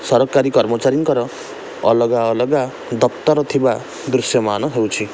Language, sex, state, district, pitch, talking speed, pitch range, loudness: Odia, male, Odisha, Khordha, 120 Hz, 105 wpm, 110-140 Hz, -17 LUFS